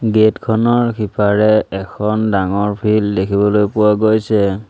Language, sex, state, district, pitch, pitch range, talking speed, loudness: Assamese, male, Assam, Sonitpur, 105 Hz, 100-110 Hz, 115 wpm, -15 LUFS